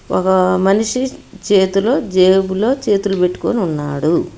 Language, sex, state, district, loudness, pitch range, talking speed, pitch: Telugu, female, Telangana, Hyderabad, -15 LUFS, 185-215 Hz, 95 wpm, 195 Hz